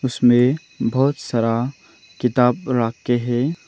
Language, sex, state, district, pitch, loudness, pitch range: Hindi, male, Arunachal Pradesh, Longding, 125 Hz, -19 LUFS, 120-135 Hz